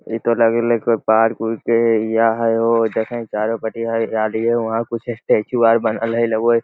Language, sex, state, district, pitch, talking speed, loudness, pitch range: Magahi, male, Bihar, Lakhisarai, 115 Hz, 210 wpm, -18 LUFS, 110-115 Hz